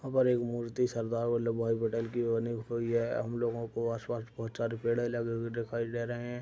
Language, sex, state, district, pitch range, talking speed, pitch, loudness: Hindi, male, Uttar Pradesh, Deoria, 115-120 Hz, 215 wpm, 115 Hz, -33 LUFS